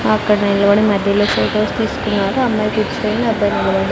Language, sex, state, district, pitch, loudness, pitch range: Telugu, female, Andhra Pradesh, Sri Satya Sai, 210 Hz, -16 LUFS, 200-215 Hz